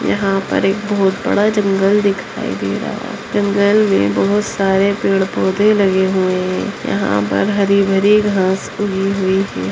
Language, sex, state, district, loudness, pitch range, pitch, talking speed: Hindi, female, Bihar, Muzaffarpur, -15 LUFS, 190-205 Hz, 195 Hz, 150 wpm